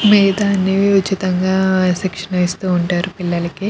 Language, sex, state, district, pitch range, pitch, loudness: Telugu, female, Andhra Pradesh, Krishna, 180-195 Hz, 190 Hz, -16 LUFS